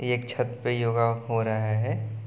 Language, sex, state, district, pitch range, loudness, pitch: Hindi, male, Bihar, Gopalganj, 110-120 Hz, -27 LUFS, 115 Hz